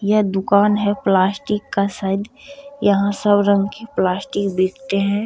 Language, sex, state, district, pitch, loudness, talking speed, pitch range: Maithili, female, Bihar, Supaul, 200 Hz, -18 LUFS, 150 wpm, 195-210 Hz